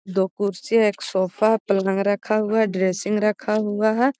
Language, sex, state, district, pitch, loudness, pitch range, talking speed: Magahi, female, Bihar, Gaya, 210 Hz, -21 LUFS, 195-220 Hz, 185 wpm